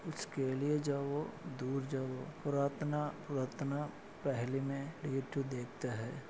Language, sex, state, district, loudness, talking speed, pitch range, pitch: Hindi, male, Maharashtra, Solapur, -39 LUFS, 125 wpm, 130-150 Hz, 140 Hz